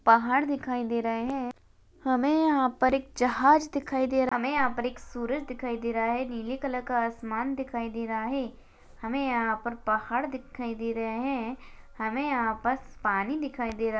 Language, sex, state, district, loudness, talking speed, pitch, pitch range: Hindi, female, Maharashtra, Chandrapur, -29 LUFS, 190 wpm, 245 Hz, 230-265 Hz